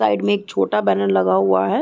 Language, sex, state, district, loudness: Hindi, female, Chhattisgarh, Raigarh, -18 LUFS